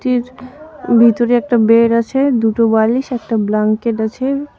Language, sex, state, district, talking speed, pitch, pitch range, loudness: Bengali, female, West Bengal, Alipurduar, 115 wpm, 235 Hz, 225-255 Hz, -14 LUFS